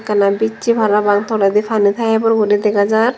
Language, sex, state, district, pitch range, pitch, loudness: Chakma, female, Tripura, Dhalai, 205-225 Hz, 210 Hz, -15 LUFS